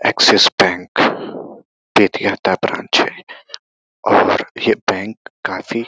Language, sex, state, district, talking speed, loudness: Hindi, male, Uttar Pradesh, Gorakhpur, 100 wpm, -15 LUFS